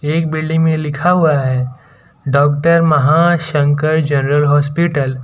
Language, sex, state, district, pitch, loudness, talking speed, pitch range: Hindi, male, Gujarat, Valsad, 150 Hz, -14 LUFS, 125 wpm, 145-160 Hz